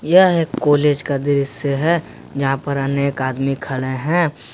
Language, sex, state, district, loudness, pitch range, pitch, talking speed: Hindi, male, Jharkhand, Ranchi, -18 LUFS, 135-150 Hz, 140 Hz, 160 wpm